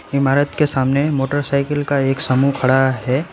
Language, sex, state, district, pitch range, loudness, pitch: Hindi, male, West Bengal, Alipurduar, 135-145 Hz, -17 LUFS, 135 Hz